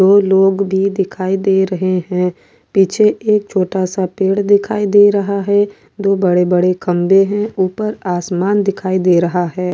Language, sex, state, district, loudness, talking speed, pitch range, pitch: Hindi, female, Maharashtra, Chandrapur, -14 LUFS, 165 wpm, 185-200 Hz, 195 Hz